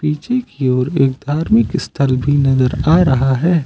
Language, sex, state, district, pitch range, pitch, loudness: Hindi, male, Uttar Pradesh, Lucknow, 130-165 Hz, 140 Hz, -15 LUFS